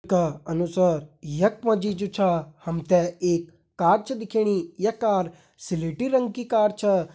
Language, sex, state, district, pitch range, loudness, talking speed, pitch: Hindi, male, Uttarakhand, Tehri Garhwal, 170-215 Hz, -24 LUFS, 170 wpm, 185 Hz